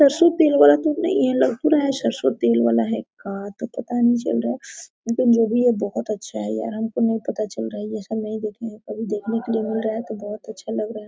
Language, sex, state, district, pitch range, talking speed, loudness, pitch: Hindi, female, Jharkhand, Sahebganj, 200-240 Hz, 280 wpm, -21 LUFS, 220 Hz